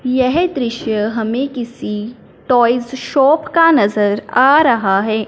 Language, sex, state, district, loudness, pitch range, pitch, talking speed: Hindi, male, Punjab, Fazilka, -15 LUFS, 220-270 Hz, 245 Hz, 125 wpm